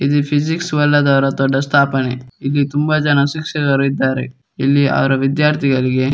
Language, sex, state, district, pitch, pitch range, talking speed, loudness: Kannada, male, Karnataka, Dakshina Kannada, 140 Hz, 135-145 Hz, 135 wpm, -16 LUFS